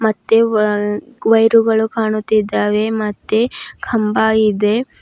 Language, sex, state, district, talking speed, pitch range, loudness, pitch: Kannada, female, Karnataka, Bidar, 95 wpm, 210-225 Hz, -15 LUFS, 220 Hz